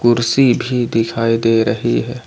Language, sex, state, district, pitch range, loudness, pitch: Hindi, male, Jharkhand, Ranchi, 115-120 Hz, -15 LUFS, 120 Hz